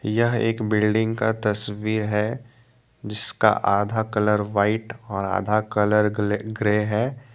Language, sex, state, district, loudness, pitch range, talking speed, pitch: Hindi, male, Jharkhand, Deoghar, -23 LUFS, 105-115 Hz, 130 wpm, 110 Hz